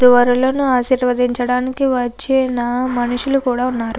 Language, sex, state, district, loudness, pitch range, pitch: Telugu, female, Andhra Pradesh, Krishna, -16 LUFS, 245-260 Hz, 250 Hz